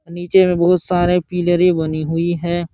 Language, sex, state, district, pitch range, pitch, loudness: Hindi, male, Uttar Pradesh, Jalaun, 170-180 Hz, 175 Hz, -16 LUFS